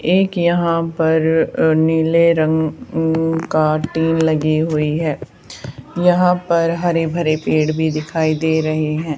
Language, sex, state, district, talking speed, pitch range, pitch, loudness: Hindi, female, Haryana, Charkhi Dadri, 145 wpm, 155-165 Hz, 160 Hz, -17 LUFS